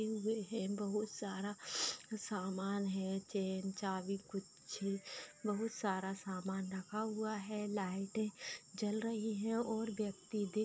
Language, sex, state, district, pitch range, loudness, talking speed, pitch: Hindi, female, Jharkhand, Sahebganj, 195-215 Hz, -41 LUFS, 130 wpm, 205 Hz